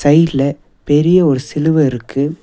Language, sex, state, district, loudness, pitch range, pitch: Tamil, male, Tamil Nadu, Nilgiris, -14 LUFS, 140-160 Hz, 145 Hz